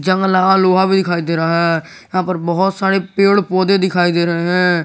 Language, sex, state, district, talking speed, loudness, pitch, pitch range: Hindi, male, Jharkhand, Garhwa, 225 wpm, -15 LUFS, 185 Hz, 170-190 Hz